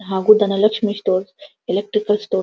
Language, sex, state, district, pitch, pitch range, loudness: Kannada, female, Karnataka, Dharwad, 210 Hz, 195-210 Hz, -18 LUFS